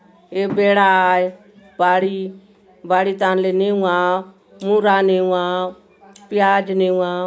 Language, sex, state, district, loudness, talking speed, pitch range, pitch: Halbi, male, Chhattisgarh, Bastar, -17 LUFS, 105 wpm, 185-195 Hz, 190 Hz